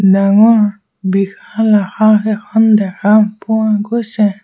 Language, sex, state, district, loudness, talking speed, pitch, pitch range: Assamese, male, Assam, Sonitpur, -12 LUFS, 95 wpm, 210 Hz, 200-220 Hz